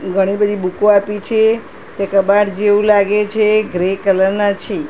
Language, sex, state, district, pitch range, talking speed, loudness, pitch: Gujarati, female, Gujarat, Gandhinagar, 195-210 Hz, 170 wpm, -14 LUFS, 205 Hz